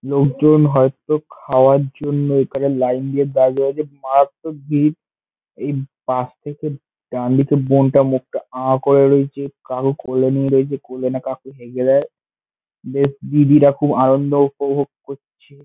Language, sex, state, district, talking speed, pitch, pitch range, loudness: Bengali, male, West Bengal, Dakshin Dinajpur, 140 wpm, 140 Hz, 130-140 Hz, -17 LUFS